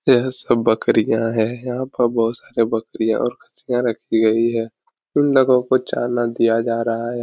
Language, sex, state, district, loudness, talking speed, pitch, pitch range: Hindi, male, Uttar Pradesh, Etah, -19 LUFS, 180 wpm, 115 Hz, 115-125 Hz